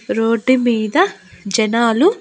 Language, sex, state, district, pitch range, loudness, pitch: Telugu, female, Andhra Pradesh, Annamaya, 225-280 Hz, -16 LUFS, 235 Hz